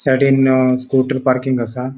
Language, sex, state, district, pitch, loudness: Konkani, male, Goa, North and South Goa, 130 Hz, -15 LUFS